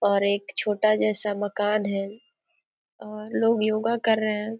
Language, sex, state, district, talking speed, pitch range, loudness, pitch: Hindi, female, Jharkhand, Sahebganj, 155 wpm, 205-220 Hz, -24 LUFS, 215 Hz